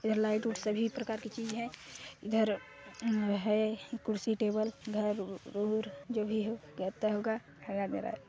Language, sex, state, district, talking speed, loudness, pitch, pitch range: Hindi, male, Chhattisgarh, Sarguja, 135 wpm, -35 LUFS, 215 Hz, 210-225 Hz